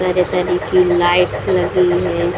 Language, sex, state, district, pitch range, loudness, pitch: Hindi, female, Bihar, Saran, 175-180 Hz, -15 LUFS, 180 Hz